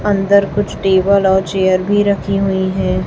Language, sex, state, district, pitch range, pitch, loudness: Hindi, female, Chhattisgarh, Raipur, 190-200 Hz, 195 Hz, -14 LUFS